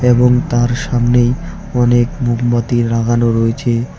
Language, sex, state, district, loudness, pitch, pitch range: Bengali, male, West Bengal, Alipurduar, -14 LUFS, 120 Hz, 120-125 Hz